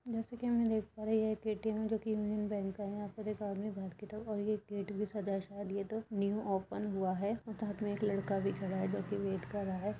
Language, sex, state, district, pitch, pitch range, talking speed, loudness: Hindi, female, Uttar Pradesh, Budaun, 205 Hz, 200-215 Hz, 295 wpm, -38 LUFS